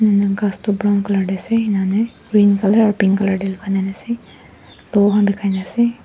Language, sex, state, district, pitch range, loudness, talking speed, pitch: Nagamese, female, Nagaland, Dimapur, 195-210 Hz, -17 LUFS, 240 wpm, 205 Hz